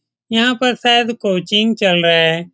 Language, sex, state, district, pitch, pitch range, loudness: Hindi, male, Bihar, Saran, 215 Hz, 175-240 Hz, -14 LUFS